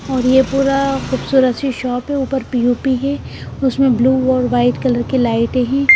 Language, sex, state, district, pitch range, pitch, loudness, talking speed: Hindi, female, Punjab, Kapurthala, 245-270 Hz, 260 Hz, -16 LUFS, 180 wpm